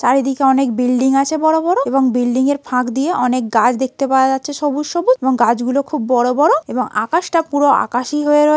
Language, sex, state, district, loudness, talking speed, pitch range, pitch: Bengali, female, West Bengal, Malda, -15 LUFS, 205 wpm, 250-295 Hz, 265 Hz